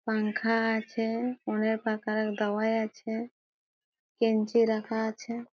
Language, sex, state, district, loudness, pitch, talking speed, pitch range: Bengali, female, West Bengal, Jhargram, -29 LUFS, 225 Hz, 100 wpm, 215-230 Hz